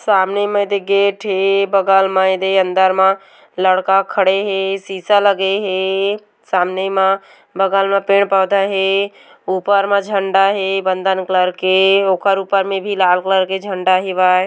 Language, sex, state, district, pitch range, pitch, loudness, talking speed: Hindi, female, Chhattisgarh, Korba, 190-200 Hz, 195 Hz, -15 LUFS, 160 wpm